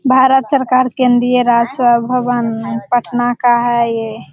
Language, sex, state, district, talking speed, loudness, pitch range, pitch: Hindi, female, Bihar, Jamui, 125 wpm, -13 LUFS, 235-255 Hz, 245 Hz